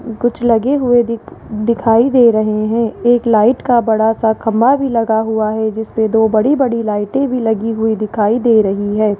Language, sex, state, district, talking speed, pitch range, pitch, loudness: Hindi, male, Rajasthan, Jaipur, 200 wpm, 220-240 Hz, 225 Hz, -14 LUFS